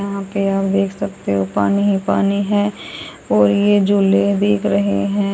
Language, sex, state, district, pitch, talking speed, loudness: Hindi, female, Haryana, Charkhi Dadri, 195 Hz, 180 wpm, -17 LUFS